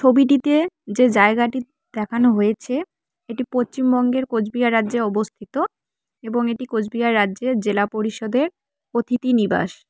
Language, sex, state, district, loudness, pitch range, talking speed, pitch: Bengali, female, West Bengal, Cooch Behar, -20 LUFS, 220-255 Hz, 110 wpm, 240 Hz